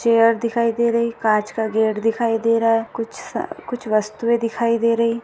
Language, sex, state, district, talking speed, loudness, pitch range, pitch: Hindi, female, Maharashtra, Sindhudurg, 205 wpm, -20 LUFS, 225-235 Hz, 230 Hz